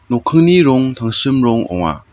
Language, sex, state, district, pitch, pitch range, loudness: Garo, male, Meghalaya, South Garo Hills, 120 Hz, 110-135 Hz, -13 LUFS